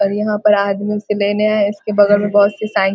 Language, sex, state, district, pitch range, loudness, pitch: Hindi, female, Bihar, Vaishali, 200-210 Hz, -15 LUFS, 205 Hz